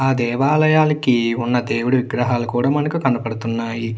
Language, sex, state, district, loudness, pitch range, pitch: Telugu, male, Andhra Pradesh, Anantapur, -18 LUFS, 115-135 Hz, 125 Hz